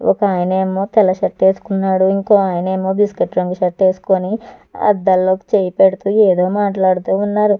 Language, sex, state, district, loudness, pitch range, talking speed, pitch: Telugu, female, Andhra Pradesh, Chittoor, -15 LUFS, 185-205 Hz, 125 wpm, 190 Hz